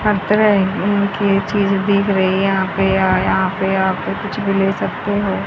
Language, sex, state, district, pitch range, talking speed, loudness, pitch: Hindi, female, Haryana, Charkhi Dadri, 190-200 Hz, 210 wpm, -16 LUFS, 195 Hz